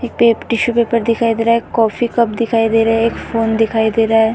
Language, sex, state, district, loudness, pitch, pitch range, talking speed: Hindi, female, Uttar Pradesh, Budaun, -15 LUFS, 230 Hz, 225-230 Hz, 260 wpm